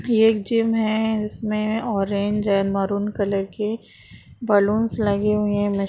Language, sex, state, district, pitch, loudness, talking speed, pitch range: Hindi, female, Bihar, Samastipur, 210 Hz, -21 LUFS, 150 wpm, 200-220 Hz